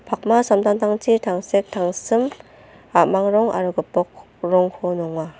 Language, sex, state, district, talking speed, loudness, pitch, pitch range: Garo, female, Meghalaya, North Garo Hills, 110 wpm, -20 LUFS, 200 Hz, 180-215 Hz